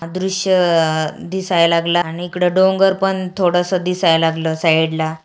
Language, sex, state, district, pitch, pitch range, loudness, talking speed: Marathi, female, Maharashtra, Aurangabad, 175 Hz, 165-185 Hz, -16 LUFS, 150 wpm